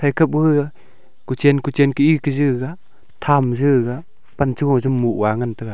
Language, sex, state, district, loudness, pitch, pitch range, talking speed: Wancho, male, Arunachal Pradesh, Longding, -18 LUFS, 140 Hz, 125-145 Hz, 210 wpm